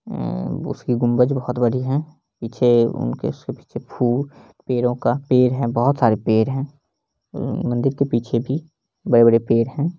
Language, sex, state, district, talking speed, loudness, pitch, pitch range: Hindi, male, Bihar, Lakhisarai, 145 wpm, -20 LUFS, 125 Hz, 115-135 Hz